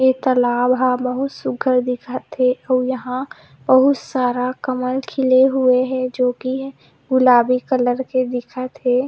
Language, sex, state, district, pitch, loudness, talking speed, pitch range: Chhattisgarhi, female, Chhattisgarh, Rajnandgaon, 255 Hz, -18 LUFS, 140 wpm, 250-260 Hz